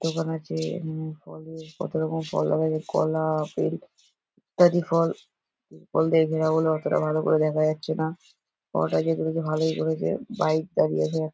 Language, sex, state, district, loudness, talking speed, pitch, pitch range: Bengali, male, West Bengal, Dakshin Dinajpur, -25 LUFS, 165 wpm, 160 Hz, 155-160 Hz